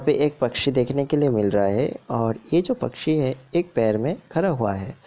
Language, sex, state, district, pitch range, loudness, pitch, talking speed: Hindi, male, Bihar, Sitamarhi, 115-150 Hz, -23 LUFS, 135 Hz, 250 wpm